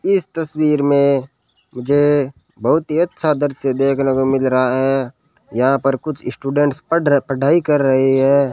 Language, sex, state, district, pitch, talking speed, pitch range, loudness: Hindi, male, Rajasthan, Bikaner, 140 Hz, 155 wpm, 135-150 Hz, -17 LUFS